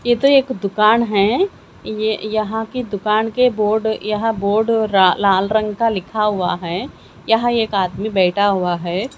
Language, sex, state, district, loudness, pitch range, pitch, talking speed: Hindi, female, Haryana, Jhajjar, -17 LUFS, 200-225 Hz, 215 Hz, 170 wpm